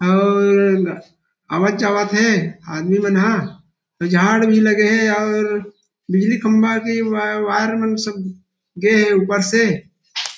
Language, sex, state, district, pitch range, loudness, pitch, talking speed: Chhattisgarhi, male, Chhattisgarh, Rajnandgaon, 185-215 Hz, -17 LUFS, 205 Hz, 125 wpm